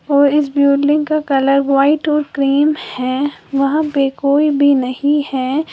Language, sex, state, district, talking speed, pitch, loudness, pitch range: Hindi, female, Uttar Pradesh, Lalitpur, 155 wpm, 285 Hz, -15 LUFS, 275-295 Hz